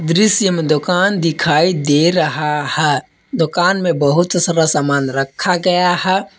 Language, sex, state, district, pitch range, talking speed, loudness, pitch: Hindi, male, Jharkhand, Palamu, 150-180 Hz, 140 wpm, -15 LUFS, 170 Hz